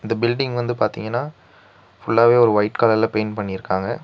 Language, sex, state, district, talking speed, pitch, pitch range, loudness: Tamil, male, Tamil Nadu, Nilgiris, 180 wpm, 110 Hz, 105-120 Hz, -19 LUFS